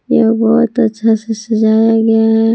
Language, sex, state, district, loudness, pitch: Hindi, female, Jharkhand, Palamu, -12 LUFS, 225 Hz